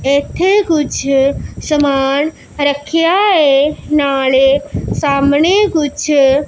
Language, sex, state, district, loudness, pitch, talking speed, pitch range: Punjabi, female, Punjab, Pathankot, -13 LUFS, 285 Hz, 75 wpm, 275-315 Hz